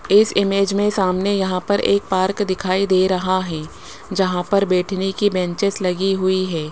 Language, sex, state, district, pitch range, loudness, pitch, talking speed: Hindi, male, Rajasthan, Jaipur, 185-200 Hz, -19 LUFS, 190 Hz, 180 wpm